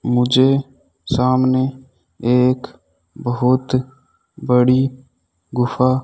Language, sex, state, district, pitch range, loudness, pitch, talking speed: Hindi, male, Rajasthan, Bikaner, 125-130 Hz, -17 LUFS, 130 Hz, 70 wpm